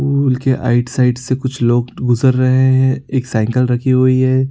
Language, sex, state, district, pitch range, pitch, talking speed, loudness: Sadri, male, Chhattisgarh, Jashpur, 125-130 Hz, 130 Hz, 200 wpm, -14 LUFS